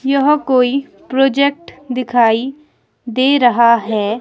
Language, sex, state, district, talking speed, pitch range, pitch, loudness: Hindi, female, Himachal Pradesh, Shimla, 100 wpm, 240-275 Hz, 260 Hz, -14 LUFS